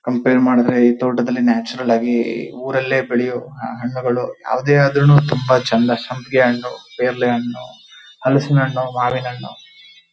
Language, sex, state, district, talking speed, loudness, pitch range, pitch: Kannada, male, Karnataka, Shimoga, 130 wpm, -17 LUFS, 120-130 Hz, 125 Hz